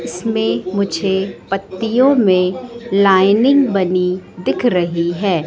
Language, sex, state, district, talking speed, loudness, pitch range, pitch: Hindi, female, Madhya Pradesh, Katni, 100 wpm, -16 LUFS, 180-225 Hz, 195 Hz